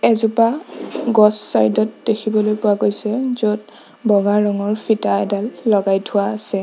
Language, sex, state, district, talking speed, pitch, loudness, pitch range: Assamese, female, Assam, Sonitpur, 135 wpm, 210 Hz, -17 LUFS, 205-220 Hz